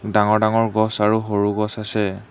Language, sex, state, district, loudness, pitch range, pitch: Assamese, male, Assam, Hailakandi, -19 LUFS, 105-110 Hz, 105 Hz